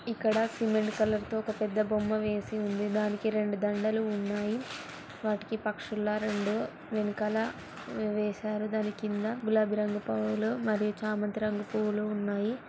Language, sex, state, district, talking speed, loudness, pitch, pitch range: Telugu, female, Andhra Pradesh, Chittoor, 125 wpm, -31 LUFS, 215 Hz, 210-220 Hz